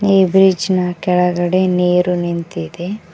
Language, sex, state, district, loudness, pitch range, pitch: Kannada, female, Karnataka, Koppal, -15 LUFS, 175-185 Hz, 180 Hz